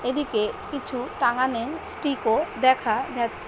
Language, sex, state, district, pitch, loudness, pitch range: Bengali, female, West Bengal, Paschim Medinipur, 255 Hz, -25 LUFS, 235-290 Hz